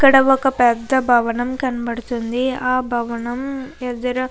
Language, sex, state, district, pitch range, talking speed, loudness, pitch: Telugu, female, Andhra Pradesh, Krishna, 240-260 Hz, 125 wpm, -19 LUFS, 250 Hz